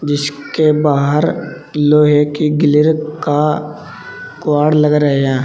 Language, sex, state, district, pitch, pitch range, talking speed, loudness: Hindi, male, Uttar Pradesh, Saharanpur, 150 Hz, 145-155 Hz, 110 wpm, -14 LUFS